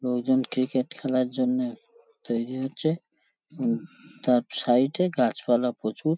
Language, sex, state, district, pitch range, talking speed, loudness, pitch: Bengali, male, West Bengal, Paschim Medinipur, 125-155 Hz, 115 wpm, -26 LUFS, 130 Hz